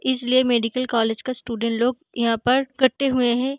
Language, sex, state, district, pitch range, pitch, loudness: Hindi, female, Uttar Pradesh, Deoria, 230-260 Hz, 250 Hz, -21 LUFS